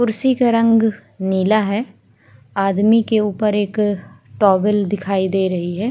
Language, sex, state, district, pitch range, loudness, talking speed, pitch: Hindi, female, Uttar Pradesh, Hamirpur, 190-220 Hz, -17 LUFS, 140 wpm, 205 Hz